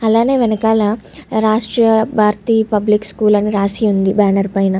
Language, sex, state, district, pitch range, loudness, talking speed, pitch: Telugu, female, Andhra Pradesh, Guntur, 205-220 Hz, -14 LUFS, 135 wpm, 215 Hz